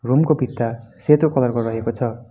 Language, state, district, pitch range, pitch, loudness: Nepali, West Bengal, Darjeeling, 115-135 Hz, 120 Hz, -19 LUFS